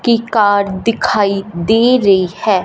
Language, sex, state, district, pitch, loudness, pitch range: Hindi, female, Punjab, Fazilka, 205 Hz, -13 LUFS, 195-230 Hz